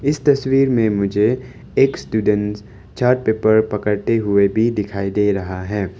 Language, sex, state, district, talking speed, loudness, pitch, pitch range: Hindi, male, Arunachal Pradesh, Longding, 150 wpm, -18 LUFS, 105 Hz, 100-125 Hz